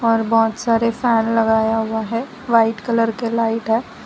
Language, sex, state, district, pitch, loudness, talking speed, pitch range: Hindi, female, Gujarat, Valsad, 230 Hz, -18 LUFS, 175 wpm, 225-230 Hz